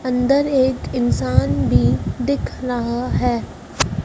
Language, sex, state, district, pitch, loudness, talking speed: Hindi, male, Madhya Pradesh, Dhar, 240 Hz, -19 LUFS, 105 wpm